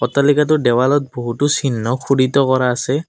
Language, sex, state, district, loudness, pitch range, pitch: Assamese, male, Assam, Kamrup Metropolitan, -16 LUFS, 125-145 Hz, 135 Hz